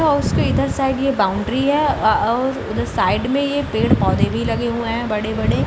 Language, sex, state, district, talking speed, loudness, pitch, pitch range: Hindi, female, Bihar, Gaya, 190 wpm, -18 LUFS, 240 Hz, 215-275 Hz